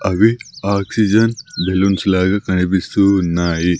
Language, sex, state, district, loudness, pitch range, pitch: Telugu, male, Andhra Pradesh, Sri Satya Sai, -16 LUFS, 90-105 Hz, 95 Hz